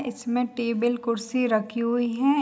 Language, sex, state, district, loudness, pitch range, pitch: Hindi, female, Bihar, Saharsa, -25 LUFS, 235-245 Hz, 240 Hz